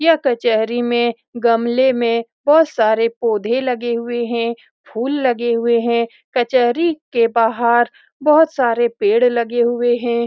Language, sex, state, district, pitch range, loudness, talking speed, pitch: Hindi, female, Bihar, Saran, 235-255 Hz, -17 LUFS, 140 wpm, 240 Hz